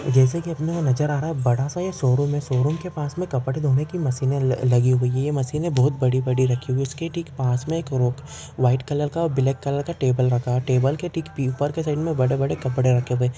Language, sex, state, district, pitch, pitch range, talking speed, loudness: Hindi, male, Maharashtra, Chandrapur, 135 Hz, 130-150 Hz, 265 wpm, -22 LUFS